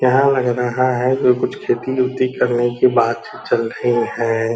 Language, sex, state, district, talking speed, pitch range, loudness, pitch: Hindi, female, Bihar, Purnia, 170 wpm, 120-130 Hz, -17 LUFS, 125 Hz